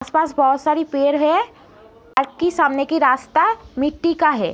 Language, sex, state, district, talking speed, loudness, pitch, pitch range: Hindi, female, Uttar Pradesh, Gorakhpur, 160 wpm, -18 LUFS, 300 Hz, 275-320 Hz